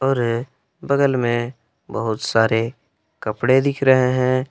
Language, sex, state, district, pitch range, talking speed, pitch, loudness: Hindi, male, Jharkhand, Palamu, 115-130 Hz, 105 wpm, 125 Hz, -19 LUFS